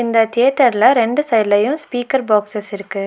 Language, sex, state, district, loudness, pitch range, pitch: Tamil, female, Tamil Nadu, Nilgiris, -15 LUFS, 210-255 Hz, 230 Hz